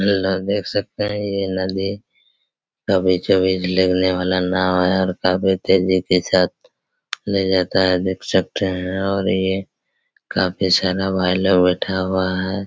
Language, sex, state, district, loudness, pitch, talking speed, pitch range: Hindi, male, Chhattisgarh, Raigarh, -19 LUFS, 95 Hz, 150 wpm, 90-95 Hz